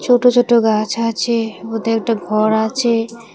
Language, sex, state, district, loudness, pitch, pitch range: Bengali, female, Tripura, West Tripura, -16 LUFS, 225 Hz, 220-235 Hz